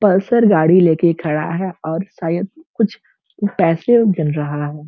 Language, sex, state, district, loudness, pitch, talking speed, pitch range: Hindi, female, Uttar Pradesh, Gorakhpur, -16 LUFS, 170 Hz, 145 wpm, 160-200 Hz